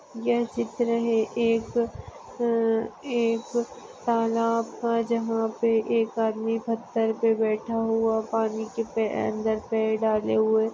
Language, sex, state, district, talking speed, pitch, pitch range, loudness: Hindi, female, Maharashtra, Aurangabad, 130 wpm, 225 Hz, 220-230 Hz, -26 LUFS